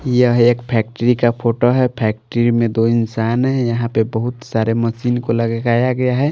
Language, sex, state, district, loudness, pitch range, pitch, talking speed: Hindi, male, Maharashtra, Washim, -17 LUFS, 115-125 Hz, 120 Hz, 190 wpm